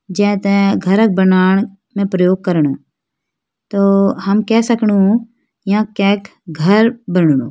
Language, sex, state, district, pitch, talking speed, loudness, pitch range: Hindi, female, Uttarakhand, Uttarkashi, 200 Hz, 120 wpm, -14 LUFS, 185-210 Hz